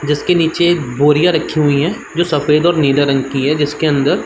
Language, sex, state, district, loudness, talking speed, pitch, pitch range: Hindi, male, Uttar Pradesh, Varanasi, -14 LUFS, 210 wpm, 150 Hz, 145-170 Hz